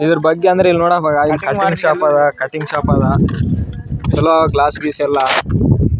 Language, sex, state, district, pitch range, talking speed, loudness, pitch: Kannada, male, Karnataka, Raichur, 135-160 Hz, 160 wpm, -14 LUFS, 150 Hz